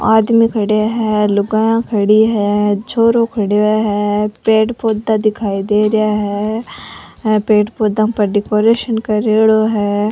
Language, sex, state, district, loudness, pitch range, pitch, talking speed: Rajasthani, female, Rajasthan, Churu, -14 LUFS, 210-220 Hz, 215 Hz, 130 wpm